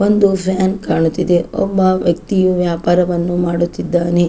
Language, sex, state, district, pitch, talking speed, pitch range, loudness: Kannada, female, Karnataka, Chamarajanagar, 175 Hz, 100 wpm, 175-190 Hz, -15 LUFS